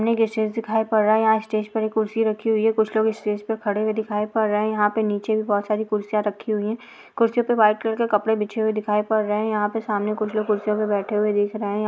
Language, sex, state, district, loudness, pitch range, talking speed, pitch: Hindi, female, Bihar, Jahanabad, -22 LUFS, 210-220 Hz, 275 wpm, 215 Hz